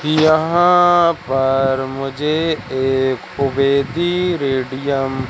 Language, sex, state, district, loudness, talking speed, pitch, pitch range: Hindi, male, Madhya Pradesh, Katni, -16 LUFS, 70 wpm, 140 Hz, 135-160 Hz